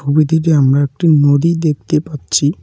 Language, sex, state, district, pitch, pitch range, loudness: Bengali, male, West Bengal, Cooch Behar, 150 Hz, 145-160 Hz, -13 LUFS